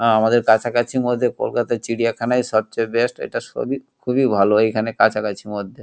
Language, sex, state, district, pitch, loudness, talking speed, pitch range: Bengali, male, West Bengal, Kolkata, 115 Hz, -19 LUFS, 165 wpm, 110-120 Hz